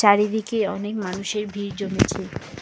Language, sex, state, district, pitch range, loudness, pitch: Bengali, female, West Bengal, Alipurduar, 200-210 Hz, -24 LUFS, 205 Hz